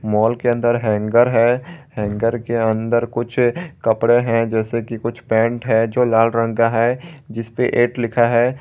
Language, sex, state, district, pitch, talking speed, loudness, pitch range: Hindi, male, Jharkhand, Garhwa, 115 Hz, 180 wpm, -18 LUFS, 115-120 Hz